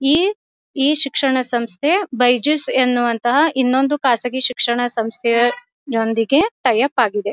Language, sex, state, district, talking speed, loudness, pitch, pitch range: Kannada, female, Karnataka, Dharwad, 105 wpm, -17 LUFS, 255 Hz, 240-290 Hz